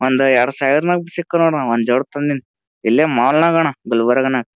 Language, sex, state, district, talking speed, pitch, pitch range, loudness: Kannada, male, Karnataka, Gulbarga, 145 wpm, 135 Hz, 120-160 Hz, -16 LUFS